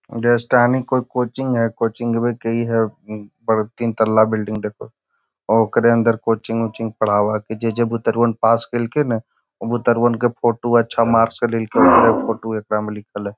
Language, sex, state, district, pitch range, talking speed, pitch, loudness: Magahi, male, Bihar, Gaya, 110-120 Hz, 190 wpm, 115 Hz, -18 LUFS